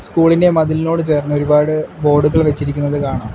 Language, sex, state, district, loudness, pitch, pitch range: Malayalam, male, Kerala, Kollam, -15 LUFS, 150 Hz, 145-160 Hz